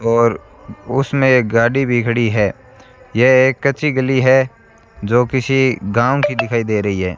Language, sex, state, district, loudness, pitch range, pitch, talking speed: Hindi, male, Rajasthan, Bikaner, -15 LUFS, 115-130 Hz, 120 Hz, 165 wpm